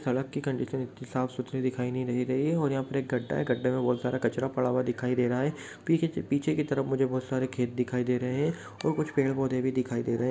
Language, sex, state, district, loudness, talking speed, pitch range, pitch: Hindi, male, Bihar, Lakhisarai, -29 LUFS, 275 wpm, 125-135 Hz, 130 Hz